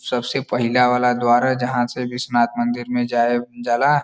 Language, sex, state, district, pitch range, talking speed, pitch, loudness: Bhojpuri, male, Uttar Pradesh, Varanasi, 120-125 Hz, 180 wpm, 120 Hz, -19 LUFS